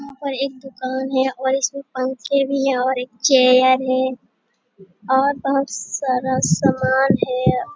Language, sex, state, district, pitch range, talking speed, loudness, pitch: Hindi, female, Bihar, Jamui, 255-275 Hz, 145 wpm, -19 LUFS, 260 Hz